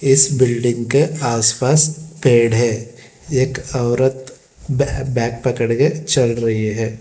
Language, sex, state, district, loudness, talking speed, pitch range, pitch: Hindi, male, Telangana, Hyderabad, -17 LUFS, 130 wpm, 115-135 Hz, 125 Hz